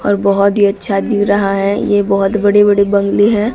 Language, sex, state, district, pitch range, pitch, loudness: Hindi, female, Odisha, Sambalpur, 200-205 Hz, 205 Hz, -12 LUFS